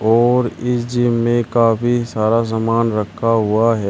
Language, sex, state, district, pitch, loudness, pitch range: Hindi, male, Uttar Pradesh, Shamli, 115 Hz, -16 LUFS, 110-120 Hz